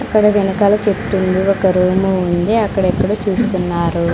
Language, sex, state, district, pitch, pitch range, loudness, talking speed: Telugu, female, Andhra Pradesh, Sri Satya Sai, 195 Hz, 185-205 Hz, -15 LUFS, 115 wpm